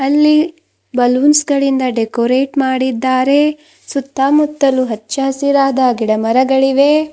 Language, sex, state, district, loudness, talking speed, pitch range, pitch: Kannada, female, Karnataka, Bidar, -14 LUFS, 75 wpm, 255-290 Hz, 270 Hz